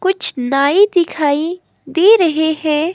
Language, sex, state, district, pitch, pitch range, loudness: Hindi, female, Himachal Pradesh, Shimla, 320 Hz, 300-365 Hz, -14 LUFS